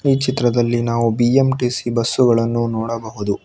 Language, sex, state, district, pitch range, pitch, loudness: Kannada, male, Karnataka, Bangalore, 115-125 Hz, 120 Hz, -18 LUFS